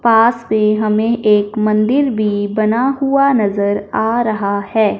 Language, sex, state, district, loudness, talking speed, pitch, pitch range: Hindi, male, Punjab, Fazilka, -15 LUFS, 145 wpm, 215 Hz, 210-230 Hz